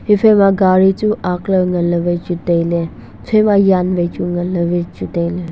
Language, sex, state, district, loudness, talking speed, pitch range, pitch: Wancho, male, Arunachal Pradesh, Longding, -15 LUFS, 165 wpm, 170-195 Hz, 175 Hz